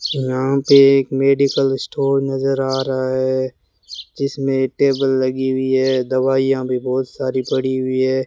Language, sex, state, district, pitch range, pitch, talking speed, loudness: Hindi, male, Rajasthan, Bikaner, 130-135 Hz, 130 Hz, 150 wpm, -17 LUFS